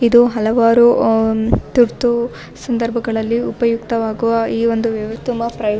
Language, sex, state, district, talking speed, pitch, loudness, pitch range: Kannada, female, Karnataka, Bellary, 135 wpm, 230 Hz, -16 LUFS, 225-235 Hz